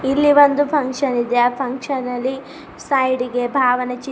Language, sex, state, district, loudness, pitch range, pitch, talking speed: Kannada, female, Karnataka, Bidar, -18 LUFS, 250-280 Hz, 265 Hz, 145 wpm